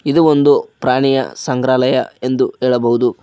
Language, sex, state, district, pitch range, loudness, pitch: Kannada, male, Karnataka, Koppal, 125-135 Hz, -15 LUFS, 130 Hz